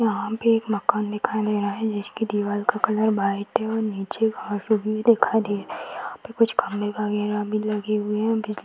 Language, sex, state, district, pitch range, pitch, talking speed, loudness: Hindi, female, Bihar, Jahanabad, 205-220 Hz, 215 Hz, 230 wpm, -24 LUFS